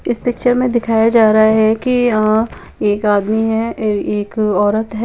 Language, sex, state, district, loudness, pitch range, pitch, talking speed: Hindi, female, Chandigarh, Chandigarh, -14 LUFS, 215-230 Hz, 220 Hz, 180 wpm